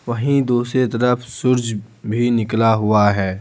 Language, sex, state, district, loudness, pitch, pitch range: Hindi, male, Bihar, Patna, -18 LUFS, 120 Hz, 110-125 Hz